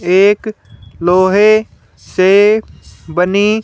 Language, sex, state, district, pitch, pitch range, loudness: Hindi, female, Haryana, Charkhi Dadri, 200 Hz, 185-215 Hz, -12 LUFS